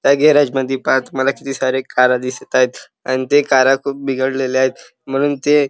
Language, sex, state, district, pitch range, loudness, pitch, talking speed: Marathi, male, Maharashtra, Chandrapur, 130-140 Hz, -16 LUFS, 135 Hz, 190 wpm